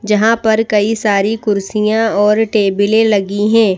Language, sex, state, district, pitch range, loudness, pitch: Hindi, female, Madhya Pradesh, Bhopal, 205-220 Hz, -13 LUFS, 215 Hz